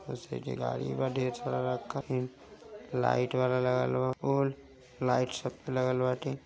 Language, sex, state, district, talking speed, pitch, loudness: Hindi, male, Uttar Pradesh, Gorakhpur, 150 wpm, 125 Hz, -32 LUFS